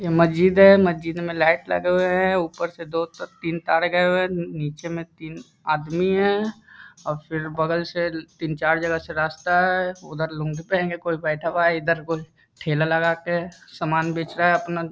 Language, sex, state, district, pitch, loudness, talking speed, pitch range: Hindi, male, Bihar, Muzaffarpur, 165 Hz, -22 LUFS, 190 wpm, 160-175 Hz